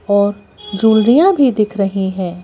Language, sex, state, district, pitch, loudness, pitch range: Hindi, female, Madhya Pradesh, Bhopal, 205 Hz, -14 LUFS, 195-225 Hz